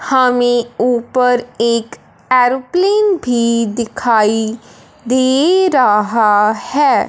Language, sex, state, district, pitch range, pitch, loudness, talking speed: Hindi, male, Punjab, Fazilka, 230-260 Hz, 245 Hz, -14 LUFS, 75 wpm